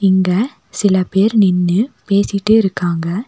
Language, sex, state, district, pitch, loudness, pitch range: Tamil, female, Tamil Nadu, Nilgiris, 195 Hz, -15 LUFS, 185-210 Hz